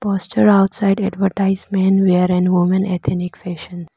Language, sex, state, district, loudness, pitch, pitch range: English, female, Arunachal Pradesh, Lower Dibang Valley, -16 LUFS, 190 Hz, 180-195 Hz